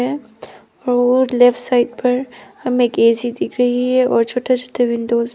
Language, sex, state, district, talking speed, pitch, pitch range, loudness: Hindi, female, Arunachal Pradesh, Papum Pare, 170 wpm, 245 Hz, 240-250 Hz, -16 LUFS